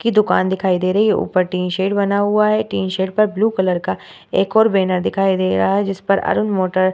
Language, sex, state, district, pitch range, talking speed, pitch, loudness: Hindi, female, Bihar, Vaishali, 185-210 Hz, 260 wpm, 195 Hz, -17 LUFS